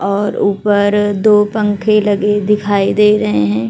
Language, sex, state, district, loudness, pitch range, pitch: Hindi, female, Uttar Pradesh, Hamirpur, -13 LUFS, 200-210 Hz, 205 Hz